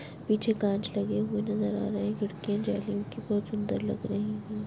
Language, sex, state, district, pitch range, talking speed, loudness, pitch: Hindi, female, Uttarakhand, Tehri Garhwal, 205-215 Hz, 205 wpm, -31 LUFS, 210 Hz